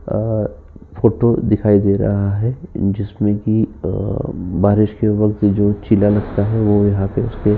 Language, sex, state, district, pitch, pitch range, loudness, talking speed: Hindi, male, Uttar Pradesh, Jyotiba Phule Nagar, 105 Hz, 100-110 Hz, -17 LUFS, 165 wpm